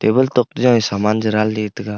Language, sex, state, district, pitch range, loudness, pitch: Wancho, male, Arunachal Pradesh, Longding, 105-120 Hz, -17 LUFS, 110 Hz